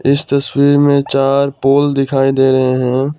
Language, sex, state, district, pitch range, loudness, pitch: Hindi, male, Assam, Kamrup Metropolitan, 135-140 Hz, -13 LUFS, 140 Hz